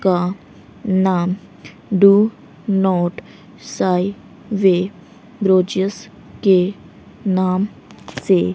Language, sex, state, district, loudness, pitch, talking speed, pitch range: Hindi, female, Haryana, Rohtak, -18 LUFS, 190 Hz, 70 wpm, 185-200 Hz